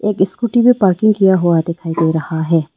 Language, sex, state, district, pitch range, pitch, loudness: Hindi, female, Arunachal Pradesh, Lower Dibang Valley, 165-210 Hz, 185 Hz, -14 LUFS